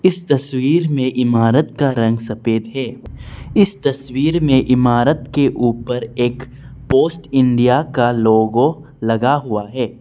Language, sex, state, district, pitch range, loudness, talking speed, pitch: Hindi, male, Arunachal Pradesh, Lower Dibang Valley, 120-145 Hz, -16 LUFS, 130 wpm, 130 Hz